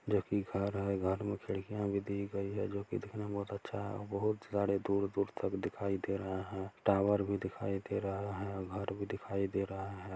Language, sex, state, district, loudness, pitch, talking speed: Hindi, male, Bihar, Araria, -37 LUFS, 100 Hz, 220 wpm